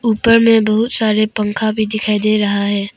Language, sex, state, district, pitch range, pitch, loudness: Hindi, female, Arunachal Pradesh, Papum Pare, 210-225 Hz, 215 Hz, -14 LUFS